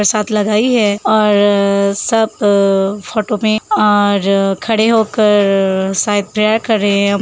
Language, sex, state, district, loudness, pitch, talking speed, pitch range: Hindi, female, Uttar Pradesh, Hamirpur, -13 LUFS, 210 Hz, 125 wpm, 200-215 Hz